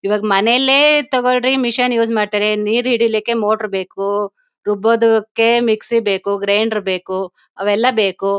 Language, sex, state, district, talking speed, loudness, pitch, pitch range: Kannada, female, Karnataka, Bellary, 120 wpm, -15 LUFS, 215 Hz, 200-235 Hz